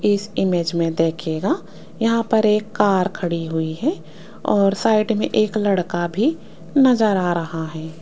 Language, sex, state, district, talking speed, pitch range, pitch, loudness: Hindi, female, Rajasthan, Jaipur, 155 wpm, 170-215 Hz, 195 Hz, -20 LUFS